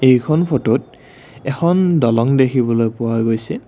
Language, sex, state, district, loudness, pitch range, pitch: Assamese, male, Assam, Kamrup Metropolitan, -16 LUFS, 115-140 Hz, 125 Hz